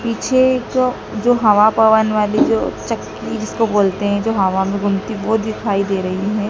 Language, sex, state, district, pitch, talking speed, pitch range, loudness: Hindi, female, Madhya Pradesh, Dhar, 215 Hz, 195 wpm, 200-225 Hz, -16 LUFS